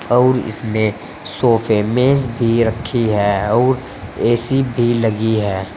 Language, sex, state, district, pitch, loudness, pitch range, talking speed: Hindi, male, Uttar Pradesh, Saharanpur, 115 Hz, -16 LUFS, 110-125 Hz, 125 wpm